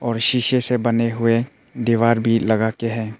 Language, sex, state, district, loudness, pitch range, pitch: Hindi, male, Arunachal Pradesh, Papum Pare, -19 LUFS, 115-120 Hz, 115 Hz